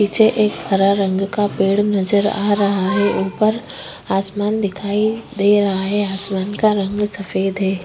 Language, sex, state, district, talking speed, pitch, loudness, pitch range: Hindi, female, Uttar Pradesh, Jyotiba Phule Nagar, 160 wpm, 205 Hz, -18 LUFS, 195-210 Hz